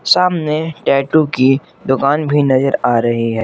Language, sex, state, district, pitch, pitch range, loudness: Hindi, male, Jharkhand, Garhwa, 140 Hz, 130-155 Hz, -14 LUFS